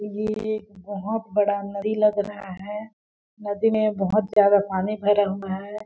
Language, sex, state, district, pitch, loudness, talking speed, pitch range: Hindi, female, Chhattisgarh, Balrampur, 205 Hz, -23 LUFS, 155 wpm, 200-215 Hz